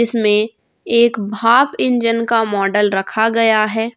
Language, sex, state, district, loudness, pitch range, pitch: Hindi, female, Jharkhand, Ranchi, -15 LUFS, 210-235 Hz, 225 Hz